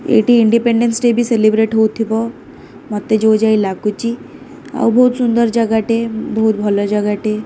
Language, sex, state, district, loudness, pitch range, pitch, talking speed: Odia, female, Odisha, Khordha, -14 LUFS, 215-235 Hz, 225 Hz, 155 wpm